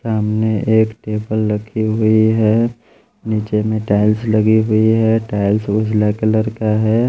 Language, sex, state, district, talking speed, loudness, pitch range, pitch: Hindi, male, Bihar, Patna, 145 wpm, -16 LUFS, 105-110 Hz, 110 Hz